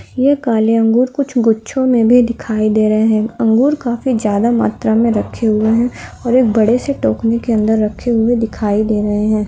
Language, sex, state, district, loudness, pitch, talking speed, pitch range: Hindi, female, Andhra Pradesh, Krishna, -14 LUFS, 225 Hz, 195 wpm, 215-240 Hz